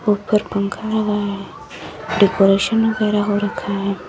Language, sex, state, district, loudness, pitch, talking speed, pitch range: Hindi, female, Uttar Pradesh, Lalitpur, -18 LUFS, 205 Hz, 130 wpm, 200-215 Hz